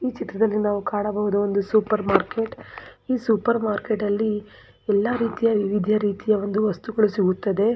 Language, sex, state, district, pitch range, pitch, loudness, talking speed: Kannada, female, Karnataka, Belgaum, 205-220 Hz, 210 Hz, -23 LUFS, 140 wpm